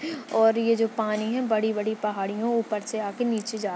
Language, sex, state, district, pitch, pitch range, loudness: Hindi, male, Maharashtra, Dhule, 220 Hz, 215-230 Hz, -26 LUFS